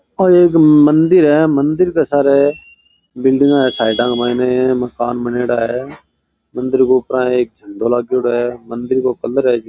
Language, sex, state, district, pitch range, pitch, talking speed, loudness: Rajasthani, male, Rajasthan, Churu, 120-145 Hz, 125 Hz, 160 wpm, -14 LUFS